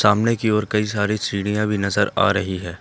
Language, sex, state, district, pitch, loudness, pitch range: Hindi, male, Jharkhand, Ranchi, 105 Hz, -20 LUFS, 100-105 Hz